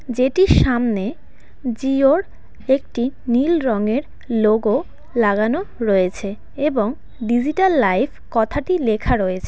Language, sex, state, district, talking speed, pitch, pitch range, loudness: Bengali, female, West Bengal, Cooch Behar, 100 wpm, 240 Hz, 215-275 Hz, -19 LUFS